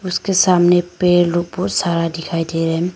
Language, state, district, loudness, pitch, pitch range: Hindi, Arunachal Pradesh, Lower Dibang Valley, -16 LUFS, 175 Hz, 165-180 Hz